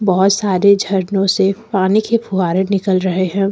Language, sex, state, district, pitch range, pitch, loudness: Hindi, female, Jharkhand, Deoghar, 190-200 Hz, 195 Hz, -15 LUFS